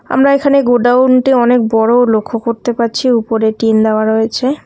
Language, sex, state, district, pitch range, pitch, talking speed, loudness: Bengali, female, West Bengal, Cooch Behar, 225-255 Hz, 235 Hz, 165 wpm, -12 LUFS